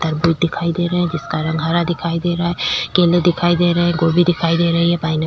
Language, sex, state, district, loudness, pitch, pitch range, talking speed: Hindi, female, Chhattisgarh, Korba, -17 LUFS, 170 Hz, 165-175 Hz, 275 wpm